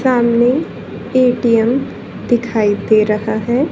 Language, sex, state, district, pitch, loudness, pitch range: Hindi, female, Haryana, Charkhi Dadri, 235 Hz, -15 LUFS, 220-250 Hz